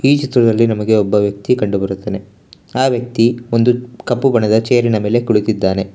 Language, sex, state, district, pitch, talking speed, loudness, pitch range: Kannada, male, Karnataka, Bangalore, 115 Hz, 160 wpm, -15 LUFS, 105-125 Hz